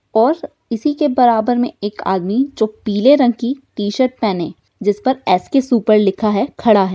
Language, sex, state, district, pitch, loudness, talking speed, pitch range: Hindi, female, Bihar, Jahanabad, 230 Hz, -16 LUFS, 180 wpm, 205-255 Hz